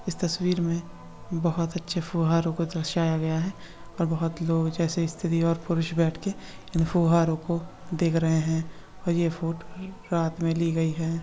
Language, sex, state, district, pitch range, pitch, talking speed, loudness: Hindi, male, Andhra Pradesh, Visakhapatnam, 165-170 Hz, 165 Hz, 170 wpm, -27 LUFS